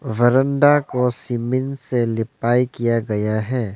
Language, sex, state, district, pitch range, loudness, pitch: Hindi, male, Arunachal Pradesh, Longding, 115-130 Hz, -19 LUFS, 120 Hz